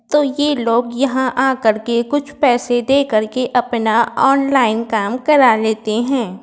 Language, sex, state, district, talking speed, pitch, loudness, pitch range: Hindi, female, Uttar Pradesh, Varanasi, 150 wpm, 245 Hz, -15 LUFS, 230-270 Hz